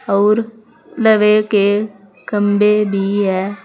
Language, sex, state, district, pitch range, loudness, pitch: Hindi, female, Uttar Pradesh, Saharanpur, 200-215 Hz, -15 LUFS, 205 Hz